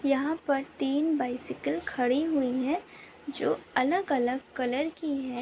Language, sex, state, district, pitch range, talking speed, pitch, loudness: Hindi, female, Andhra Pradesh, Chittoor, 255-310 Hz, 145 wpm, 275 Hz, -29 LUFS